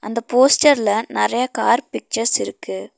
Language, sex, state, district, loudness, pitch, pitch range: Tamil, female, Tamil Nadu, Nilgiris, -17 LUFS, 235 Hz, 215-255 Hz